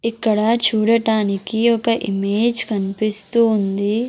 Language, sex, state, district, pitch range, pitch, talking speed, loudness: Telugu, female, Andhra Pradesh, Sri Satya Sai, 205-230 Hz, 220 Hz, 90 wpm, -17 LUFS